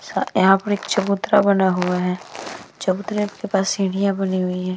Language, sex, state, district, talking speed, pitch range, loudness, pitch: Hindi, female, Uttar Pradesh, Hamirpur, 190 wpm, 185-200 Hz, -20 LUFS, 195 Hz